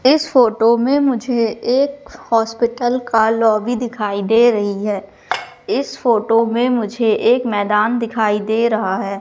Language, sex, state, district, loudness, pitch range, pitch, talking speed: Hindi, female, Madhya Pradesh, Katni, -16 LUFS, 215-245 Hz, 230 Hz, 145 wpm